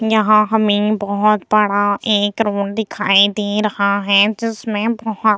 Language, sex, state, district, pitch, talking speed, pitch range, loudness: Hindi, female, Bihar, Vaishali, 210 Hz, 145 wpm, 205-220 Hz, -16 LUFS